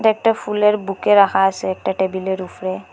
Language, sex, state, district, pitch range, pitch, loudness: Bengali, female, Assam, Hailakandi, 190-210 Hz, 195 Hz, -18 LUFS